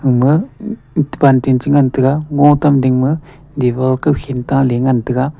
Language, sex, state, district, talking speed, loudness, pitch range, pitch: Wancho, male, Arunachal Pradesh, Longding, 180 wpm, -14 LUFS, 130-145 Hz, 135 Hz